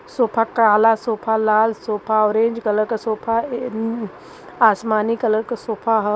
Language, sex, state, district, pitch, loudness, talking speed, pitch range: Hindi, female, Uttar Pradesh, Varanasi, 220 Hz, -19 LUFS, 145 wpm, 215-230 Hz